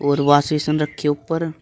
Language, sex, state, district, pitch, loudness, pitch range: Hindi, male, Uttar Pradesh, Shamli, 150 Hz, -19 LUFS, 145-155 Hz